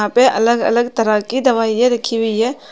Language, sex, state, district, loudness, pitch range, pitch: Hindi, female, Uttar Pradesh, Saharanpur, -15 LUFS, 225-245 Hz, 235 Hz